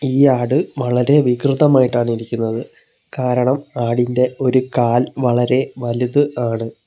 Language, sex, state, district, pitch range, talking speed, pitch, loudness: Malayalam, male, Kerala, Kollam, 120-135 Hz, 105 wpm, 125 Hz, -17 LUFS